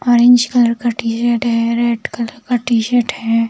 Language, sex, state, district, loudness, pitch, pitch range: Hindi, female, Bihar, Katihar, -15 LUFS, 235 Hz, 230-245 Hz